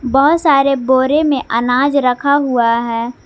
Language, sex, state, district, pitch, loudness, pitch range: Hindi, female, Jharkhand, Garhwa, 265 Hz, -13 LUFS, 245-280 Hz